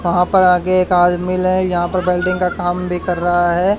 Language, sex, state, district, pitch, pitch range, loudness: Hindi, male, Haryana, Charkhi Dadri, 180 Hz, 175-185 Hz, -15 LUFS